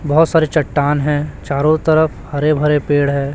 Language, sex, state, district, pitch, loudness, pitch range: Hindi, male, Chhattisgarh, Raipur, 150 Hz, -15 LUFS, 145-155 Hz